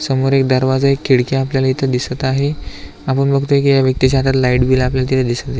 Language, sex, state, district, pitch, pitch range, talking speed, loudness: Marathi, male, Maharashtra, Aurangabad, 130 Hz, 130-135 Hz, 235 wpm, -15 LUFS